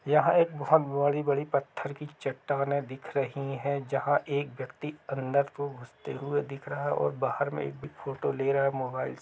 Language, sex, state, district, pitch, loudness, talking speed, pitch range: Hindi, male, Chhattisgarh, Rajnandgaon, 140 Hz, -30 LUFS, 200 wpm, 135-145 Hz